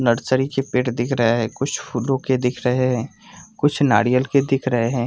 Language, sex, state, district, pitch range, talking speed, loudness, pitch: Hindi, male, Jharkhand, Sahebganj, 120-135 Hz, 215 wpm, -20 LUFS, 125 Hz